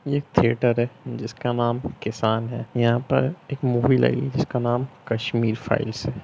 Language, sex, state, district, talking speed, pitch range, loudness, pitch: Hindi, male, Bihar, Lakhisarai, 185 wpm, 115-130 Hz, -23 LUFS, 120 Hz